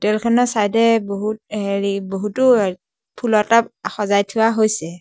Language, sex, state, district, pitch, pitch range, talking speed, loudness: Assamese, male, Assam, Sonitpur, 210 Hz, 200-230 Hz, 145 wpm, -18 LUFS